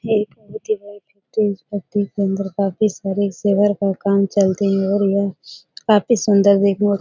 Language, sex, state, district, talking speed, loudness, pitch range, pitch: Hindi, female, Bihar, Jahanabad, 155 wpm, -18 LUFS, 195-205 Hz, 200 Hz